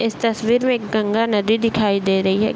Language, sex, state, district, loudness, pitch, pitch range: Hindi, male, Bihar, Bhagalpur, -18 LUFS, 220 Hz, 205-230 Hz